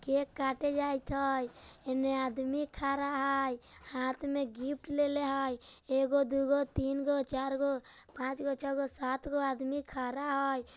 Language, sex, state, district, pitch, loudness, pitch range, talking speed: Bajjika, male, Bihar, Vaishali, 275 Hz, -34 LUFS, 265-280 Hz, 160 wpm